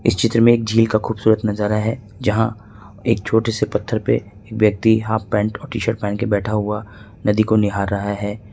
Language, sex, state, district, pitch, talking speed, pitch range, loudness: Hindi, male, Jharkhand, Ranchi, 110 Hz, 195 wpm, 105-110 Hz, -19 LUFS